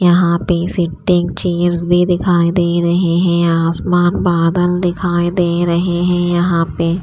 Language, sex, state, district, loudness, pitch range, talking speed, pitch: Hindi, female, Chandigarh, Chandigarh, -14 LUFS, 170-175 Hz, 120 wpm, 175 Hz